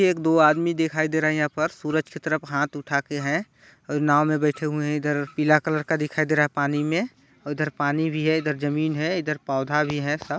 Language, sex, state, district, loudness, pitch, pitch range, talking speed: Hindi, male, Chhattisgarh, Balrampur, -23 LUFS, 150 Hz, 145-155 Hz, 250 wpm